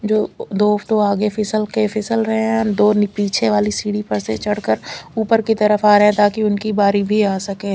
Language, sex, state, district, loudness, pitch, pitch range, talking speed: Hindi, female, Chandigarh, Chandigarh, -17 LUFS, 210 Hz, 205-215 Hz, 210 wpm